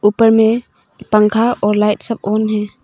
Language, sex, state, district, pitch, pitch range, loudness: Hindi, female, Arunachal Pradesh, Papum Pare, 215 Hz, 210-225 Hz, -14 LUFS